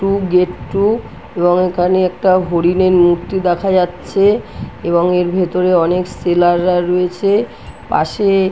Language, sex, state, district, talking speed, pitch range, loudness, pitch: Bengali, female, West Bengal, North 24 Parganas, 125 wpm, 175-190 Hz, -14 LUFS, 180 Hz